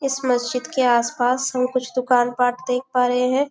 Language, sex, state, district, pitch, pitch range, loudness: Hindi, female, Chhattisgarh, Bastar, 250 Hz, 245-255 Hz, -20 LUFS